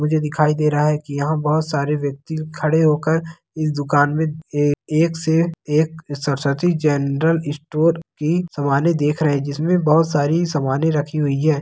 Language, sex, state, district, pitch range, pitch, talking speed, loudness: Hindi, male, Bihar, Begusarai, 145-160 Hz, 155 Hz, 170 wpm, -19 LUFS